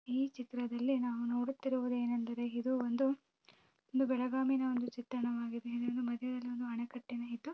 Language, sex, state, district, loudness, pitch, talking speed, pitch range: Kannada, female, Karnataka, Belgaum, -37 LUFS, 245 Hz, 110 wpm, 240-260 Hz